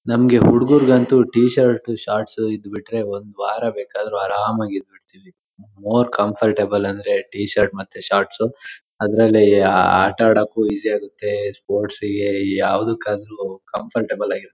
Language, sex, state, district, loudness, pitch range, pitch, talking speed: Kannada, male, Karnataka, Shimoga, -18 LUFS, 100-120 Hz, 105 Hz, 130 wpm